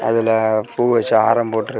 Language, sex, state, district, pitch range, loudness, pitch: Tamil, male, Tamil Nadu, Kanyakumari, 110-115 Hz, -17 LUFS, 115 Hz